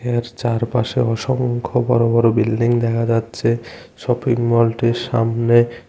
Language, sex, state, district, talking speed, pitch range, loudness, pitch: Bengali, male, Tripura, West Tripura, 100 wpm, 115-120 Hz, -18 LUFS, 120 Hz